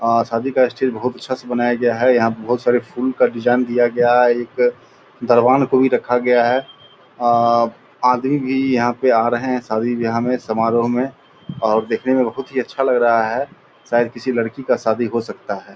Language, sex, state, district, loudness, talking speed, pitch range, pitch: Angika, male, Bihar, Purnia, -17 LUFS, 215 wpm, 115-130 Hz, 120 Hz